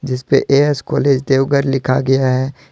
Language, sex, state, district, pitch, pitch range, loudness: Hindi, male, Jharkhand, Deoghar, 135 Hz, 130-140 Hz, -15 LUFS